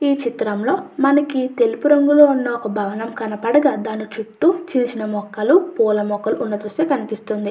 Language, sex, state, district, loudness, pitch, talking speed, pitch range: Telugu, female, Andhra Pradesh, Chittoor, -18 LUFS, 235 Hz, 130 wpm, 215-285 Hz